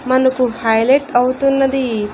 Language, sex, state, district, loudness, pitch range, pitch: Telugu, female, Andhra Pradesh, Annamaya, -15 LUFS, 235-270 Hz, 255 Hz